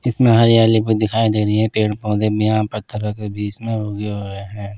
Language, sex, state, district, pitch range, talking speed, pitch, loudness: Hindi, male, Punjab, Pathankot, 105-110 Hz, 225 wpm, 105 Hz, -18 LUFS